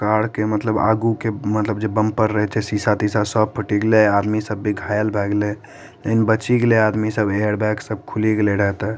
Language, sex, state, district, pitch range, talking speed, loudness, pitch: Maithili, male, Bihar, Madhepura, 105-110 Hz, 215 wpm, -19 LUFS, 105 Hz